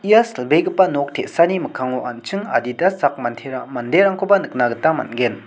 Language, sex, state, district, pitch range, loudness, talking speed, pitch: Garo, male, Meghalaya, South Garo Hills, 125-185 Hz, -18 LUFS, 130 wpm, 140 Hz